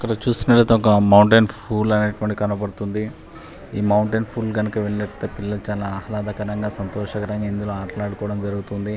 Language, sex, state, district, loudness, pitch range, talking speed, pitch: Telugu, male, Telangana, Nalgonda, -20 LUFS, 105-110 Hz, 135 wpm, 105 Hz